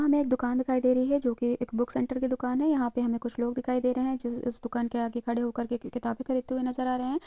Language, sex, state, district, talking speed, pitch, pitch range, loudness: Hindi, female, Chhattisgarh, Sukma, 320 wpm, 250 Hz, 240-255 Hz, -29 LUFS